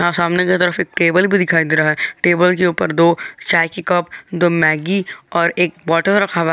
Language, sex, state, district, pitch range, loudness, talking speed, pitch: Hindi, male, Jharkhand, Garhwa, 165-180 Hz, -15 LUFS, 240 wpm, 175 Hz